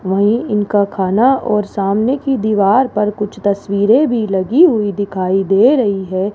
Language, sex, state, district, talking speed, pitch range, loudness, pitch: Hindi, female, Rajasthan, Jaipur, 160 wpm, 195-230 Hz, -14 LUFS, 205 Hz